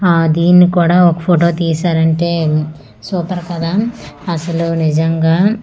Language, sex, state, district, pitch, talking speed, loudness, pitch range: Telugu, female, Andhra Pradesh, Manyam, 170 Hz, 105 wpm, -13 LUFS, 160-175 Hz